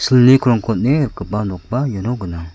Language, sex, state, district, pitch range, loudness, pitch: Garo, male, Meghalaya, South Garo Hills, 100-130 Hz, -16 LUFS, 120 Hz